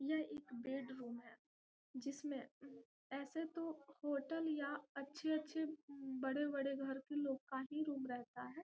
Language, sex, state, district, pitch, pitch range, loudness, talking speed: Hindi, female, Bihar, Gopalganj, 280 Hz, 265-300 Hz, -45 LUFS, 140 wpm